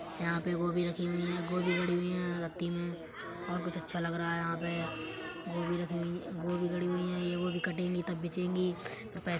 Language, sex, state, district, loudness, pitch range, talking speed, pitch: Hindi, male, Uttar Pradesh, Etah, -35 LUFS, 170-180 Hz, 225 wpm, 175 Hz